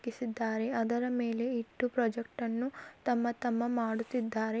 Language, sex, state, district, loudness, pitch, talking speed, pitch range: Kannada, female, Karnataka, Belgaum, -33 LUFS, 235 Hz, 115 wpm, 230-245 Hz